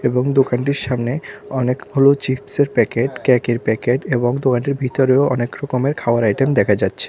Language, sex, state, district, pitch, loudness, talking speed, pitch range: Bengali, male, Tripura, West Tripura, 130 Hz, -17 LUFS, 135 wpm, 125-140 Hz